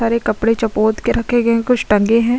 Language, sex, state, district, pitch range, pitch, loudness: Hindi, female, Uttar Pradesh, Budaun, 220-235 Hz, 230 Hz, -16 LUFS